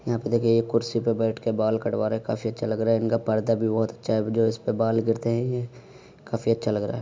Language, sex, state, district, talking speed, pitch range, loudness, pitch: Hindi, male, Uttar Pradesh, Muzaffarnagar, 275 wpm, 110-115 Hz, -25 LUFS, 115 Hz